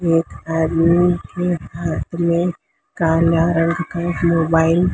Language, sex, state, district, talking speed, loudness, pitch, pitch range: Hindi, male, Maharashtra, Mumbai Suburban, 120 wpm, -18 LUFS, 170 Hz, 165-175 Hz